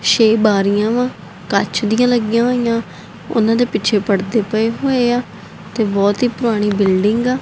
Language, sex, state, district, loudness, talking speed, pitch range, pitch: Punjabi, female, Punjab, Kapurthala, -16 LUFS, 160 wpm, 200-240 Hz, 220 Hz